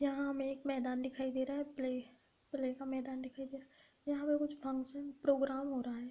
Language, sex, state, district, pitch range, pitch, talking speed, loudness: Hindi, female, Uttar Pradesh, Budaun, 260-280 Hz, 270 Hz, 235 wpm, -39 LUFS